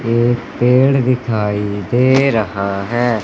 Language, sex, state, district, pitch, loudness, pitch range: Hindi, male, Madhya Pradesh, Katni, 120 Hz, -15 LUFS, 105-125 Hz